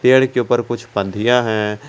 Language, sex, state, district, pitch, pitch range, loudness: Hindi, male, Jharkhand, Garhwa, 120 Hz, 105-125 Hz, -17 LUFS